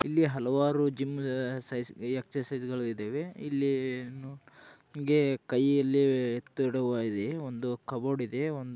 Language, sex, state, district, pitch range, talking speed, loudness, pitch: Kannada, male, Karnataka, Dharwad, 125-140 Hz, 75 wpm, -31 LUFS, 135 Hz